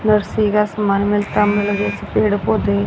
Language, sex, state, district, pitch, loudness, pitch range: Hindi, female, Haryana, Rohtak, 205 Hz, -17 LUFS, 205-210 Hz